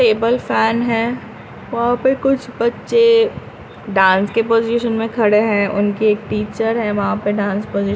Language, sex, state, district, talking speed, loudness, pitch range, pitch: Hindi, female, Bihar, Patna, 165 wpm, -16 LUFS, 205-240 Hz, 225 Hz